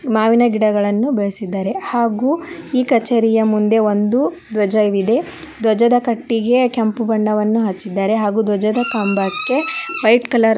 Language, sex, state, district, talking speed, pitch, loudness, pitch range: Kannada, male, Karnataka, Dharwad, 115 wpm, 225 Hz, -16 LUFS, 210-240 Hz